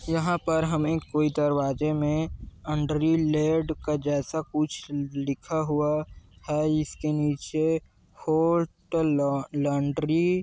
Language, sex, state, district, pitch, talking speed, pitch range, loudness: Hindi, male, Chhattisgarh, Kabirdham, 155 Hz, 110 wpm, 150-160 Hz, -26 LUFS